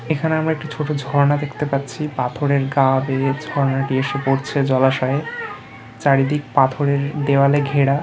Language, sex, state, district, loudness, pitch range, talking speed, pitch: Bengali, male, West Bengal, Kolkata, -19 LUFS, 135-145 Hz, 140 wpm, 140 Hz